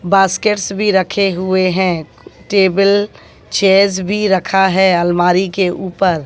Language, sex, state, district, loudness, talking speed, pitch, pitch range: Hindi, female, Haryana, Jhajjar, -14 LUFS, 125 wpm, 190 Hz, 185-195 Hz